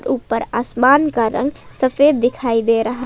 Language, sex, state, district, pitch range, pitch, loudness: Hindi, female, Jharkhand, Palamu, 230-270 Hz, 250 Hz, -16 LUFS